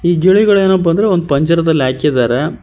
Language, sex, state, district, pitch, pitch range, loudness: Kannada, male, Karnataka, Koppal, 170 Hz, 150-190 Hz, -12 LUFS